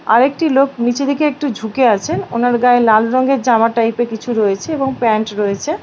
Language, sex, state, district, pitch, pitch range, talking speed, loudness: Bengali, female, West Bengal, Paschim Medinipur, 240 Hz, 225-270 Hz, 185 wpm, -15 LUFS